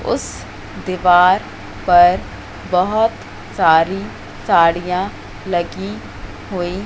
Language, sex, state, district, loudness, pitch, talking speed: Hindi, female, Madhya Pradesh, Katni, -16 LUFS, 175 Hz, 70 wpm